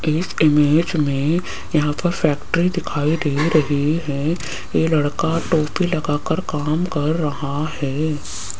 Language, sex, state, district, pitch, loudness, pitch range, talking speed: Hindi, female, Rajasthan, Jaipur, 155 Hz, -20 LUFS, 145-160 Hz, 125 wpm